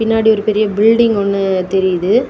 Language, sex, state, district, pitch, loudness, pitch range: Tamil, female, Tamil Nadu, Kanyakumari, 215 Hz, -13 LUFS, 195-225 Hz